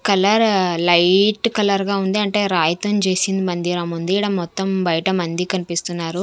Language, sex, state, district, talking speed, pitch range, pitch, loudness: Telugu, female, Andhra Pradesh, Manyam, 155 wpm, 175-200 Hz, 190 Hz, -18 LUFS